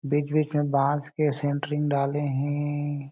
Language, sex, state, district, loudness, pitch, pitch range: Chhattisgarhi, male, Chhattisgarh, Jashpur, -26 LUFS, 145 Hz, 140-150 Hz